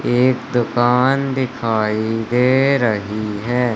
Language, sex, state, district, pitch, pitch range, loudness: Hindi, male, Madhya Pradesh, Katni, 120 Hz, 110-130 Hz, -17 LUFS